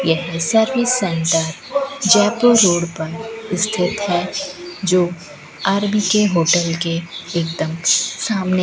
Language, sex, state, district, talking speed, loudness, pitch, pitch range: Hindi, female, Rajasthan, Bikaner, 95 wpm, -17 LUFS, 180 Hz, 165-210 Hz